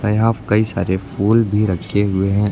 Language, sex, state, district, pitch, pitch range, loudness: Hindi, male, Uttar Pradesh, Lucknow, 105 Hz, 100-110 Hz, -17 LUFS